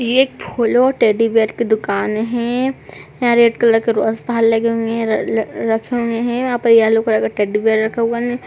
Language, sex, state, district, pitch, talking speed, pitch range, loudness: Hindi, female, Uttar Pradesh, Budaun, 230 Hz, 220 wpm, 225-240 Hz, -16 LUFS